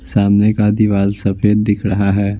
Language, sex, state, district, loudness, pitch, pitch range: Hindi, male, Bihar, Patna, -14 LUFS, 100 Hz, 100-105 Hz